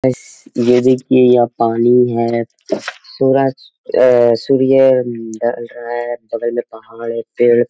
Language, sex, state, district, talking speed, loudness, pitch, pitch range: Hindi, male, Jharkhand, Sahebganj, 135 wpm, -14 LUFS, 120 Hz, 115-125 Hz